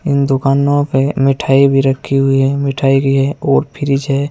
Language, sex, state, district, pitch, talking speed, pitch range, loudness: Hindi, male, Uttar Pradesh, Saharanpur, 135 Hz, 195 wpm, 135-140 Hz, -13 LUFS